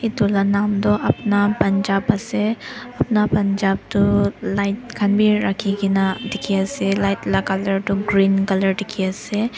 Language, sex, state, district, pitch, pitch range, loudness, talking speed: Nagamese, female, Nagaland, Dimapur, 200 Hz, 195-210 Hz, -19 LUFS, 150 wpm